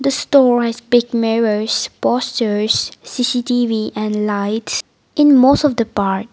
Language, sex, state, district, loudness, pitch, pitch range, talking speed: English, female, Nagaland, Dimapur, -16 LUFS, 235 Hz, 215-250 Hz, 125 wpm